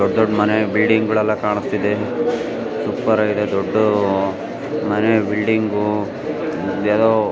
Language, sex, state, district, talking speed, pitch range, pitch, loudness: Kannada, male, Karnataka, Bijapur, 105 wpm, 105-110 Hz, 105 Hz, -18 LUFS